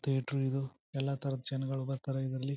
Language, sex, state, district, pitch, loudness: Kannada, male, Karnataka, Chamarajanagar, 135 Hz, -36 LUFS